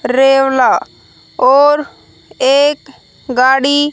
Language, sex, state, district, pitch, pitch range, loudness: Hindi, female, Haryana, Rohtak, 270 Hz, 260-290 Hz, -11 LUFS